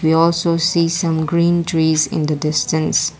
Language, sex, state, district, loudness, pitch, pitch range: English, female, Assam, Kamrup Metropolitan, -16 LUFS, 165 Hz, 160-170 Hz